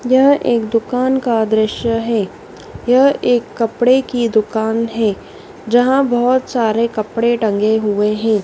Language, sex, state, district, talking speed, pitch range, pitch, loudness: Hindi, female, Madhya Pradesh, Dhar, 135 wpm, 220-250 Hz, 230 Hz, -15 LUFS